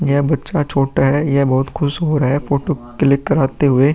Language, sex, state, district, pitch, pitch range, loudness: Hindi, male, Uttar Pradesh, Muzaffarnagar, 140 Hz, 135-150 Hz, -16 LUFS